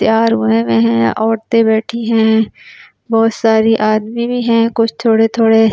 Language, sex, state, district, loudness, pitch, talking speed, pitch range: Hindi, female, Delhi, New Delhi, -13 LUFS, 225 Hz, 155 wpm, 220-230 Hz